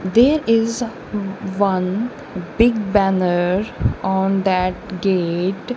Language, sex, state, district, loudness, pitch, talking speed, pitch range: English, female, Punjab, Kapurthala, -19 LUFS, 195 Hz, 85 wpm, 185-225 Hz